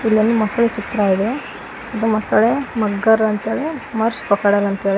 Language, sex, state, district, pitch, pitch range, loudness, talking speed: Kannada, female, Karnataka, Koppal, 220 Hz, 205-230 Hz, -18 LUFS, 120 wpm